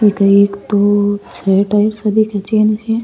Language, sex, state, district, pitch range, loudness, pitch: Rajasthani, female, Rajasthan, Churu, 200-215 Hz, -14 LUFS, 205 Hz